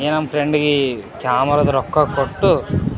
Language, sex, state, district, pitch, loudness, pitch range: Kannada, male, Karnataka, Raichur, 145 Hz, -17 LUFS, 135-150 Hz